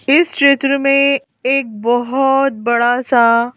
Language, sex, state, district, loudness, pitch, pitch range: Hindi, female, Madhya Pradesh, Bhopal, -14 LUFS, 270 Hz, 240-275 Hz